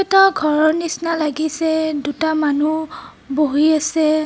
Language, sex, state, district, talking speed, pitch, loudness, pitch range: Assamese, female, Assam, Kamrup Metropolitan, 100 wpm, 315 Hz, -17 LUFS, 300-320 Hz